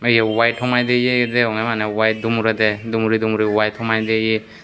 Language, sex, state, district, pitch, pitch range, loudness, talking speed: Chakma, male, Tripura, Unakoti, 110 Hz, 110-115 Hz, -18 LUFS, 195 wpm